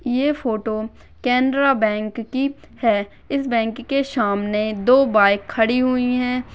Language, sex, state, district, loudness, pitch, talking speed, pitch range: Hindi, female, Chhattisgarh, Rajnandgaon, -20 LUFS, 245 Hz, 135 wpm, 215-265 Hz